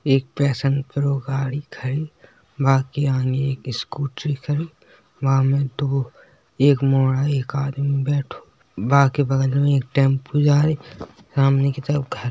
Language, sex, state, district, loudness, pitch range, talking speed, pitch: Hindi, male, Uttar Pradesh, Hamirpur, -21 LUFS, 135-145 Hz, 155 wpm, 135 Hz